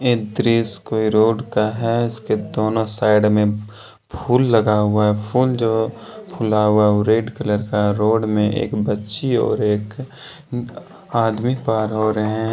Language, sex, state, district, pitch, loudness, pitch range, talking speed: Hindi, male, Jharkhand, Deoghar, 110 Hz, -19 LUFS, 105-115 Hz, 155 wpm